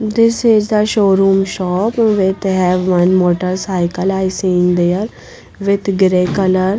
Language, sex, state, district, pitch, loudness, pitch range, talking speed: English, female, Punjab, Pathankot, 190 Hz, -14 LUFS, 185-200 Hz, 130 wpm